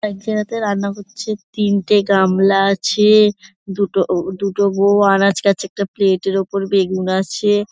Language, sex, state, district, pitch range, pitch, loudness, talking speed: Bengali, female, West Bengal, Dakshin Dinajpur, 195-205 Hz, 200 Hz, -16 LUFS, 145 wpm